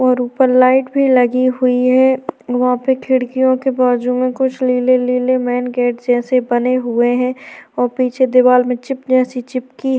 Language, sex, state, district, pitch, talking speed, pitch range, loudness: Hindi, female, Chhattisgarh, Korba, 255 Hz, 180 wpm, 250-260 Hz, -15 LUFS